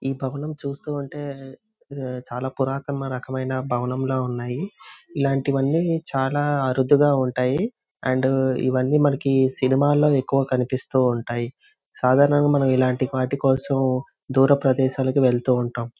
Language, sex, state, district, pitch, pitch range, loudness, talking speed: Telugu, male, Andhra Pradesh, Visakhapatnam, 135 Hz, 130-140 Hz, -22 LUFS, 100 wpm